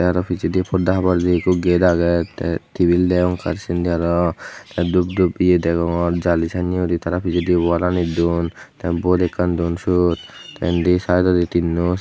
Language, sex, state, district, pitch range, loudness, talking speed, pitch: Chakma, male, Tripura, Unakoti, 85-90 Hz, -19 LUFS, 155 wpm, 90 Hz